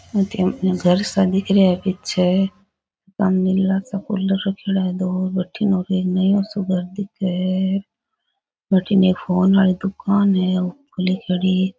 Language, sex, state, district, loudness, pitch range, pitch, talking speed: Rajasthani, female, Rajasthan, Churu, -19 LUFS, 185-195 Hz, 190 Hz, 50 wpm